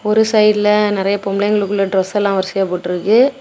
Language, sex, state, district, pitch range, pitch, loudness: Tamil, female, Tamil Nadu, Kanyakumari, 195-210 Hz, 205 Hz, -15 LUFS